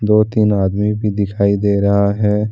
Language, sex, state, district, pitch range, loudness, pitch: Hindi, male, Jharkhand, Deoghar, 100-105 Hz, -15 LUFS, 105 Hz